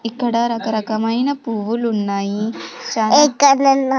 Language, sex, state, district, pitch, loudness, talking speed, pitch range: Telugu, female, Andhra Pradesh, Sri Satya Sai, 230 Hz, -17 LUFS, 60 wpm, 220-265 Hz